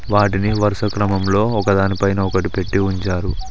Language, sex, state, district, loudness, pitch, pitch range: Telugu, male, Telangana, Mahabubabad, -18 LUFS, 100 Hz, 95-105 Hz